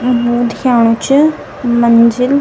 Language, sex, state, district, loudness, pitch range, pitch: Garhwali, female, Uttarakhand, Tehri Garhwal, -11 LUFS, 235-255 Hz, 240 Hz